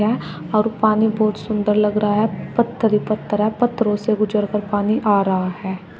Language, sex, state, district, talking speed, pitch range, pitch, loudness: Hindi, female, Uttar Pradesh, Shamli, 180 wpm, 205-215 Hz, 210 Hz, -19 LUFS